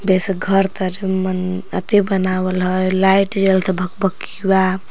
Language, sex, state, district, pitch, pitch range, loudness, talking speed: Magahi, female, Jharkhand, Palamu, 190 Hz, 185-195 Hz, -17 LUFS, 135 wpm